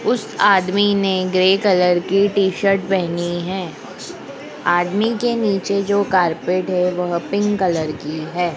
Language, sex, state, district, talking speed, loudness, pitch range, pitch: Hindi, female, Madhya Pradesh, Dhar, 140 wpm, -18 LUFS, 175-200 Hz, 185 Hz